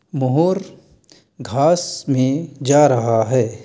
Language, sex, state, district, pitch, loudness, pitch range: Hindi, male, Uttar Pradesh, Lalitpur, 145 Hz, -17 LUFS, 130-170 Hz